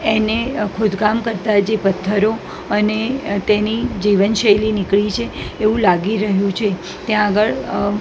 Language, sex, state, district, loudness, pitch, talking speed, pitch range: Gujarati, female, Gujarat, Gandhinagar, -17 LUFS, 210 Hz, 140 wpm, 200-220 Hz